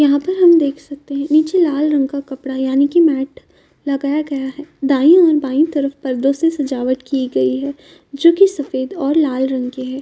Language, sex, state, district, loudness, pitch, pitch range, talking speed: Hindi, female, Uttar Pradesh, Jyotiba Phule Nagar, -16 LUFS, 280 Hz, 270-310 Hz, 210 wpm